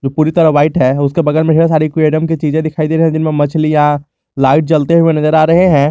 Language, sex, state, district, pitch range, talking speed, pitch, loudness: Hindi, male, Jharkhand, Garhwa, 150-160 Hz, 255 wpm, 155 Hz, -11 LUFS